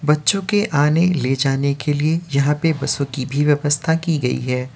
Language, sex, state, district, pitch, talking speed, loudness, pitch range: Hindi, male, Uttar Pradesh, Varanasi, 145 Hz, 200 wpm, -18 LUFS, 140-160 Hz